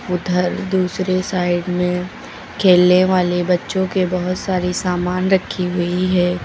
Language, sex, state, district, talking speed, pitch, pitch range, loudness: Hindi, female, Uttar Pradesh, Lucknow, 130 wpm, 180 Hz, 180-185 Hz, -18 LUFS